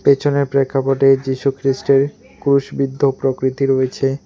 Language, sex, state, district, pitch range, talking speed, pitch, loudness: Bengali, male, West Bengal, Alipurduar, 135-140 Hz, 100 wpm, 135 Hz, -17 LUFS